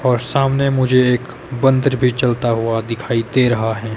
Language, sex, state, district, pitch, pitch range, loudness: Hindi, male, Himachal Pradesh, Shimla, 125 Hz, 115-130 Hz, -16 LUFS